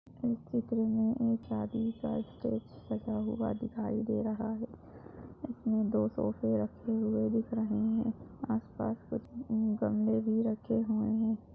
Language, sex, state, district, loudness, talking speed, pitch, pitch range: Hindi, female, Uttar Pradesh, Budaun, -33 LUFS, 150 wpm, 220 Hz, 215-230 Hz